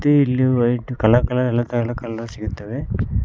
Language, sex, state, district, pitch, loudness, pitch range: Kannada, male, Karnataka, Koppal, 120 Hz, -20 LUFS, 110-125 Hz